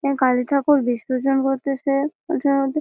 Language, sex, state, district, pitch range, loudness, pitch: Bengali, female, West Bengal, Malda, 265-280 Hz, -20 LUFS, 275 Hz